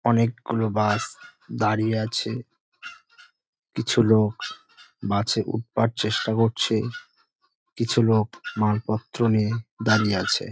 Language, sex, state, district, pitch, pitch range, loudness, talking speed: Bengali, male, West Bengal, Dakshin Dinajpur, 110 Hz, 110-120 Hz, -24 LUFS, 105 wpm